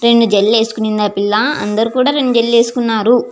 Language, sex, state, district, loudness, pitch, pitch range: Telugu, female, Andhra Pradesh, Visakhapatnam, -13 LUFS, 230 Hz, 215-240 Hz